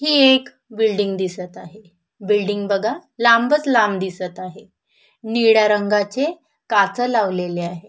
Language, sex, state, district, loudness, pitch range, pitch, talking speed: Marathi, female, Maharashtra, Solapur, -18 LUFS, 190-235 Hz, 210 Hz, 120 wpm